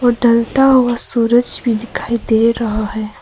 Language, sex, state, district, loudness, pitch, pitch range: Hindi, female, Arunachal Pradesh, Papum Pare, -14 LUFS, 235 Hz, 225-240 Hz